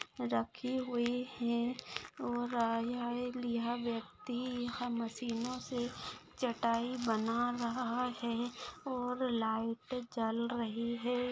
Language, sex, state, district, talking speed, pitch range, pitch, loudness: Hindi, female, Maharashtra, Nagpur, 85 wpm, 230-250 Hz, 240 Hz, -37 LUFS